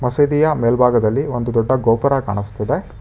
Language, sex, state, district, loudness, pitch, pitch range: Kannada, male, Karnataka, Bangalore, -17 LUFS, 125 Hz, 115-140 Hz